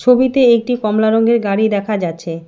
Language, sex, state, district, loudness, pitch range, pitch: Bengali, female, West Bengal, Alipurduar, -14 LUFS, 200-240 Hz, 220 Hz